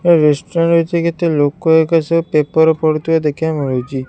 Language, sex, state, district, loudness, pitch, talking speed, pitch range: Odia, female, Odisha, Khordha, -14 LUFS, 160 Hz, 175 wpm, 150-165 Hz